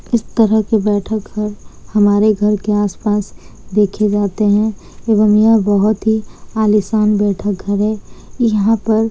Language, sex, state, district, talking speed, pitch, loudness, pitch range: Hindi, female, Bihar, Kishanganj, 140 wpm, 210 Hz, -15 LUFS, 205-220 Hz